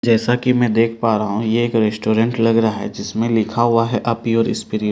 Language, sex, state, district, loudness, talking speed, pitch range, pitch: Hindi, male, Delhi, New Delhi, -17 LUFS, 255 wpm, 110-115 Hz, 115 Hz